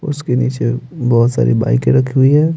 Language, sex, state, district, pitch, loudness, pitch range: Hindi, male, Bihar, Patna, 125 Hz, -14 LUFS, 115-145 Hz